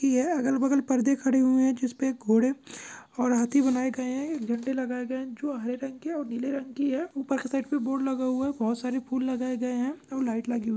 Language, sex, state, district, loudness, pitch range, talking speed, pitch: Hindi, male, Maharashtra, Chandrapur, -28 LUFS, 250-275 Hz, 250 wpm, 260 Hz